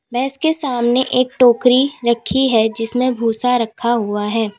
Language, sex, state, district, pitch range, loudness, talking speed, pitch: Hindi, female, Uttar Pradesh, Lalitpur, 225-255 Hz, -16 LUFS, 155 wpm, 245 Hz